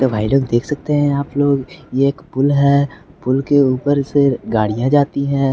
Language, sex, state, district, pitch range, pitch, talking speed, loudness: Hindi, male, Bihar, West Champaran, 130-145 Hz, 140 Hz, 205 wpm, -16 LUFS